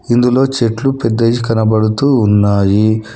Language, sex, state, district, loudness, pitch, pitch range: Telugu, male, Telangana, Hyderabad, -13 LUFS, 115 Hz, 110-125 Hz